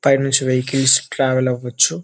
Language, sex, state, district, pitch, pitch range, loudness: Telugu, male, Telangana, Nalgonda, 130 Hz, 125-135 Hz, -16 LUFS